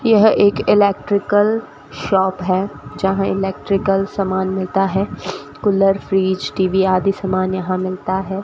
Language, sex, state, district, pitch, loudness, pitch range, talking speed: Hindi, female, Rajasthan, Bikaner, 190 Hz, -17 LUFS, 185-200 Hz, 130 wpm